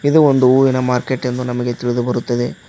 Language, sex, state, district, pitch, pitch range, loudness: Kannada, male, Karnataka, Koppal, 125 Hz, 120-130 Hz, -16 LUFS